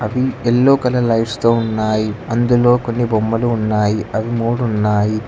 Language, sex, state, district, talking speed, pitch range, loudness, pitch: Telugu, male, Telangana, Hyderabad, 135 wpm, 110-120 Hz, -16 LUFS, 115 Hz